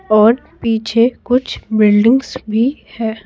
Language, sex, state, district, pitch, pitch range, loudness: Hindi, female, Bihar, Patna, 225 Hz, 220-245 Hz, -15 LUFS